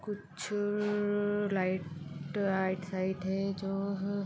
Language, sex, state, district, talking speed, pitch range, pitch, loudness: Hindi, female, Chhattisgarh, Balrampur, 100 wpm, 185-205 Hz, 195 Hz, -33 LUFS